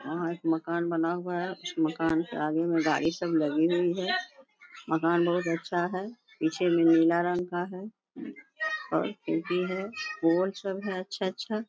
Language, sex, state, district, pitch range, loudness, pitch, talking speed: Hindi, female, Bihar, Bhagalpur, 165-190 Hz, -29 LUFS, 175 Hz, 175 wpm